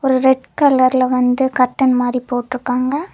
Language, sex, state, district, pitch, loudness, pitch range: Tamil, female, Tamil Nadu, Kanyakumari, 255 Hz, -16 LUFS, 250-265 Hz